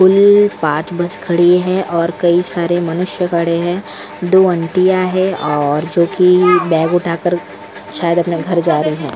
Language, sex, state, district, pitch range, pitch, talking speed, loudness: Hindi, female, Goa, North and South Goa, 165-180 Hz, 175 Hz, 170 wpm, -14 LUFS